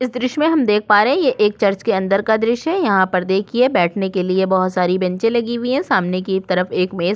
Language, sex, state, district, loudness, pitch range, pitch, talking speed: Hindi, female, Chhattisgarh, Korba, -17 LUFS, 185-235 Hz, 200 Hz, 285 wpm